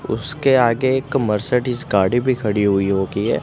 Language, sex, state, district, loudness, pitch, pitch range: Hindi, male, Gujarat, Gandhinagar, -18 LUFS, 120 Hz, 105-130 Hz